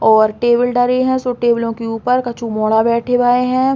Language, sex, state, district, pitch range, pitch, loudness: Bundeli, female, Uttar Pradesh, Hamirpur, 230-250 Hz, 240 Hz, -15 LUFS